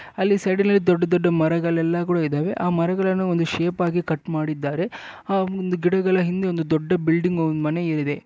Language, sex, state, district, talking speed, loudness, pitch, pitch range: Kannada, male, Karnataka, Bellary, 155 wpm, -22 LUFS, 175 Hz, 165-185 Hz